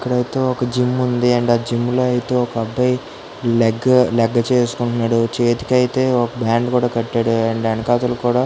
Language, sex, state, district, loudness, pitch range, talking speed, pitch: Telugu, female, Andhra Pradesh, Guntur, -17 LUFS, 115-125 Hz, 155 wpm, 120 Hz